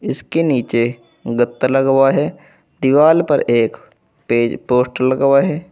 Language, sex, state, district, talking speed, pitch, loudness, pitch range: Hindi, male, Uttar Pradesh, Saharanpur, 145 wpm, 130 Hz, -16 LUFS, 120-145 Hz